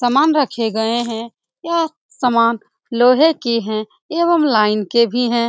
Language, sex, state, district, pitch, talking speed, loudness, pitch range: Hindi, female, Bihar, Saran, 240 Hz, 155 wpm, -17 LUFS, 225-295 Hz